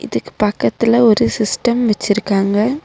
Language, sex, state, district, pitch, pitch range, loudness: Tamil, female, Tamil Nadu, Nilgiris, 220 Hz, 205-240 Hz, -15 LUFS